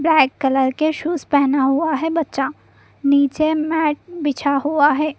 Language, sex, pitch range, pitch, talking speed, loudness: Hindi, female, 280-315 Hz, 295 Hz, 150 wpm, -18 LUFS